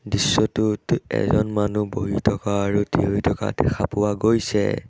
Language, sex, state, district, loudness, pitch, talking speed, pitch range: Assamese, male, Assam, Sonitpur, -22 LUFS, 105 Hz, 135 wpm, 100-110 Hz